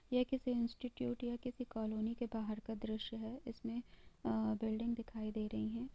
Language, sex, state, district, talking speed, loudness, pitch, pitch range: Hindi, female, Bihar, East Champaran, 180 wpm, -42 LUFS, 230 Hz, 220-245 Hz